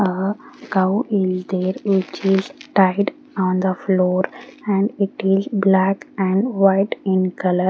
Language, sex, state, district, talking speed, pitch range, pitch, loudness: English, female, Haryana, Rohtak, 140 wpm, 190-205 Hz, 195 Hz, -19 LUFS